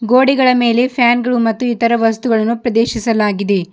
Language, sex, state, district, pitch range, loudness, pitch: Kannada, female, Karnataka, Bidar, 225-245 Hz, -14 LUFS, 235 Hz